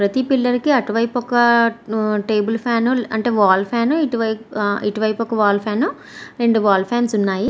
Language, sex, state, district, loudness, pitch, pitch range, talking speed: Telugu, female, Andhra Pradesh, Srikakulam, -18 LUFS, 230 Hz, 210-240 Hz, 135 wpm